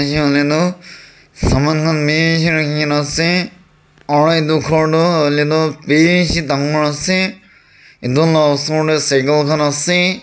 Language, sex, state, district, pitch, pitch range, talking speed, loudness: Nagamese, male, Nagaland, Dimapur, 155 Hz, 150-165 Hz, 140 wpm, -14 LUFS